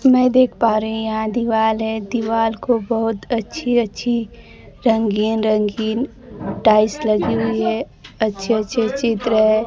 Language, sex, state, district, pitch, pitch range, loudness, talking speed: Hindi, female, Bihar, Kaimur, 225 Hz, 220-235 Hz, -19 LUFS, 145 wpm